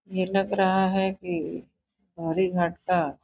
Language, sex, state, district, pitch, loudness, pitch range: Hindi, female, Uttar Pradesh, Gorakhpur, 185 Hz, -26 LUFS, 175-190 Hz